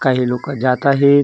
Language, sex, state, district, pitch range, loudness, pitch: Marathi, male, Maharashtra, Gondia, 125-140 Hz, -16 LUFS, 135 Hz